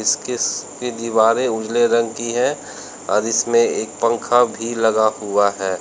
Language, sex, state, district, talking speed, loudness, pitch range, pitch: Hindi, male, Uttar Pradesh, Lalitpur, 135 wpm, -18 LUFS, 110-120 Hz, 115 Hz